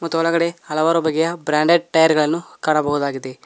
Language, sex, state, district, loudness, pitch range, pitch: Kannada, male, Karnataka, Koppal, -18 LUFS, 150-170 Hz, 160 Hz